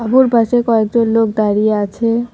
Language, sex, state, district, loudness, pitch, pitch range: Bengali, female, West Bengal, Cooch Behar, -14 LUFS, 225 Hz, 215-235 Hz